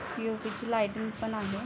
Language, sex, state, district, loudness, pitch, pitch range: Marathi, female, Maharashtra, Aurangabad, -33 LUFS, 220 Hz, 215-225 Hz